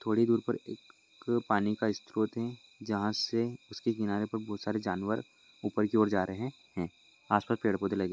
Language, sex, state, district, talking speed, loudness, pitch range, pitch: Hindi, male, Maharashtra, Solapur, 205 wpm, -32 LUFS, 105-115 Hz, 110 Hz